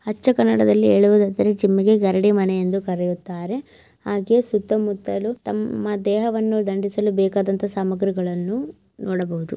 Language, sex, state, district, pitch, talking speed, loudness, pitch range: Kannada, female, Karnataka, Belgaum, 200 Hz, 105 wpm, -20 LUFS, 190-215 Hz